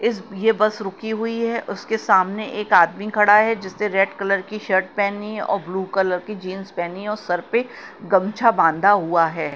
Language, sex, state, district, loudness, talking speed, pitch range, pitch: Hindi, female, Bihar, Katihar, -20 LUFS, 200 wpm, 190-215 Hz, 205 Hz